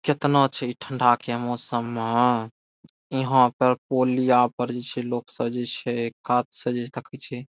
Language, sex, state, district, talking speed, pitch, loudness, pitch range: Maithili, male, Bihar, Saharsa, 175 wpm, 125 Hz, -24 LUFS, 120-130 Hz